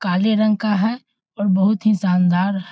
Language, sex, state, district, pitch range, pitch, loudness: Hindi, male, Bihar, Muzaffarpur, 185-215 Hz, 200 Hz, -18 LUFS